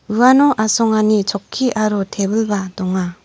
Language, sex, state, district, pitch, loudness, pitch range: Garo, female, Meghalaya, North Garo Hills, 215 Hz, -16 LUFS, 195-225 Hz